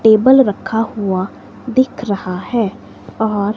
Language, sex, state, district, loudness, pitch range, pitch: Hindi, female, Himachal Pradesh, Shimla, -16 LUFS, 200-240 Hz, 220 Hz